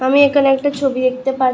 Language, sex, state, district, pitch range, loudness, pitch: Bengali, female, West Bengal, Malda, 260-280 Hz, -15 LUFS, 270 Hz